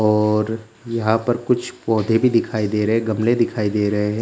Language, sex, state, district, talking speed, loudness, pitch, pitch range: Hindi, male, Bihar, Gaya, 215 wpm, -19 LUFS, 110 Hz, 105-115 Hz